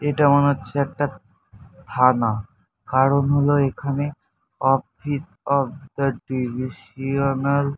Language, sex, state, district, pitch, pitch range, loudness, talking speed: Bengali, male, West Bengal, North 24 Parganas, 140 Hz, 130-140 Hz, -22 LUFS, 100 wpm